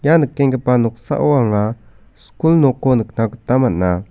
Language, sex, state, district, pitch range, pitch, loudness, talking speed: Garo, male, Meghalaya, South Garo Hills, 110-140 Hz, 125 Hz, -16 LUFS, 130 wpm